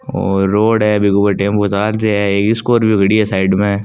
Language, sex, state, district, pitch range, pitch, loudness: Marwari, male, Rajasthan, Nagaur, 100-110 Hz, 100 Hz, -14 LUFS